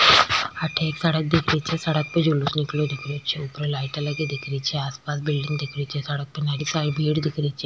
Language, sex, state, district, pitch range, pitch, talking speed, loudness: Rajasthani, female, Rajasthan, Nagaur, 145-160 Hz, 150 Hz, 260 wpm, -24 LUFS